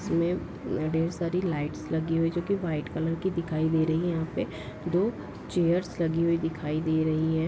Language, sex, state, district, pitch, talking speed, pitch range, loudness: Hindi, female, Bihar, Darbhanga, 165 Hz, 210 wpm, 160-170 Hz, -28 LUFS